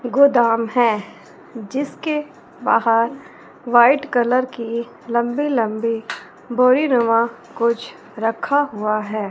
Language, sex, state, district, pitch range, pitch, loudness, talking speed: Hindi, female, Punjab, Fazilka, 230-260 Hz, 235 Hz, -19 LUFS, 90 wpm